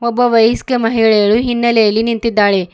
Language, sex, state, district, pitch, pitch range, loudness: Kannada, female, Karnataka, Bidar, 230 Hz, 220-235 Hz, -13 LUFS